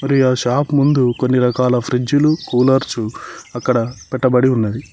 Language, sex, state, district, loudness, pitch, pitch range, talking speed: Telugu, male, Telangana, Mahabubabad, -16 LUFS, 125 Hz, 125-135 Hz, 135 wpm